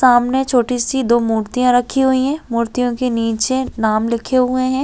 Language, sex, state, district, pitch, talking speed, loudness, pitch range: Hindi, female, Chhattisgarh, Raigarh, 250 Hz, 185 wpm, -16 LUFS, 235-260 Hz